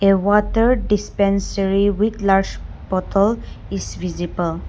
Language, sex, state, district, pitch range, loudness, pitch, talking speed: English, female, Nagaland, Dimapur, 195-210 Hz, -19 LUFS, 200 Hz, 90 wpm